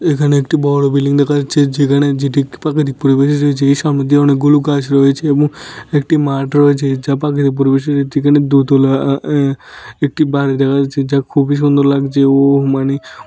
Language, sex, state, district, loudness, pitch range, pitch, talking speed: Bengali, male, Tripura, West Tripura, -13 LUFS, 140-145 Hz, 140 Hz, 170 wpm